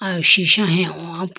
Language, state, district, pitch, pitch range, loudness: Idu Mishmi, Arunachal Pradesh, Lower Dibang Valley, 185 Hz, 170-190 Hz, -15 LUFS